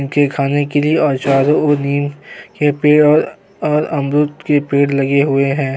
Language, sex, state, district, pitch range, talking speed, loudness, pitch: Hindi, male, Uttar Pradesh, Jyotiba Phule Nagar, 140-150 Hz, 175 wpm, -14 LUFS, 145 Hz